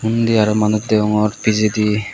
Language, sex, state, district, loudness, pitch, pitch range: Chakma, male, Tripura, West Tripura, -16 LUFS, 105 Hz, 105-110 Hz